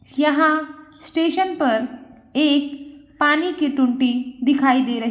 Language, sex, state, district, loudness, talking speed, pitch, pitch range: Hindi, female, Bihar, Begusarai, -19 LUFS, 130 wpm, 285 Hz, 255-310 Hz